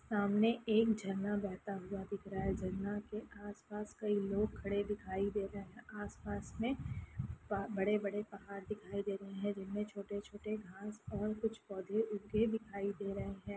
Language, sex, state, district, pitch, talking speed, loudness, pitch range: Hindi, female, Bihar, Lakhisarai, 205 Hz, 165 wpm, -40 LUFS, 200-210 Hz